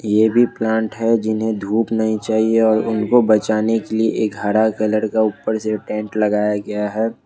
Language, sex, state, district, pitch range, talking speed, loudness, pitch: Hindi, male, Jharkhand, Ranchi, 105-110 Hz, 190 wpm, -18 LUFS, 110 Hz